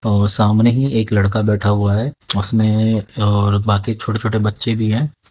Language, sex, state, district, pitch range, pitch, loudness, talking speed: Hindi, male, Haryana, Jhajjar, 105-110 Hz, 110 Hz, -16 LUFS, 180 wpm